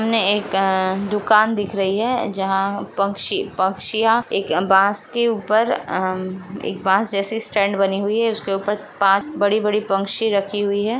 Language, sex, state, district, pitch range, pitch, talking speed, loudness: Hindi, female, Bihar, Jamui, 195-220 Hz, 200 Hz, 160 wpm, -19 LUFS